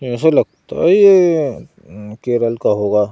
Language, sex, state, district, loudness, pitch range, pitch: Hindi, male, Madhya Pradesh, Bhopal, -14 LUFS, 105-160 Hz, 120 Hz